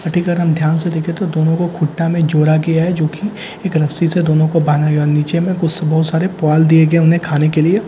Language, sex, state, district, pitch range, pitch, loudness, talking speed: Hindi, male, Bihar, Katihar, 155-175 Hz, 160 Hz, -14 LUFS, 275 wpm